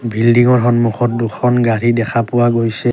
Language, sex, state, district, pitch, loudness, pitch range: Assamese, male, Assam, Kamrup Metropolitan, 120 Hz, -14 LUFS, 115-120 Hz